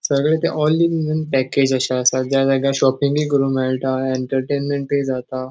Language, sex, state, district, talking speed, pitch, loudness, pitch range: Konkani, male, Goa, North and South Goa, 85 wpm, 135 Hz, -18 LUFS, 130-145 Hz